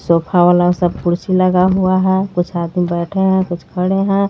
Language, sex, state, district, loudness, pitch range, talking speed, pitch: Hindi, female, Jharkhand, Garhwa, -15 LUFS, 175-190 Hz, 180 wpm, 180 Hz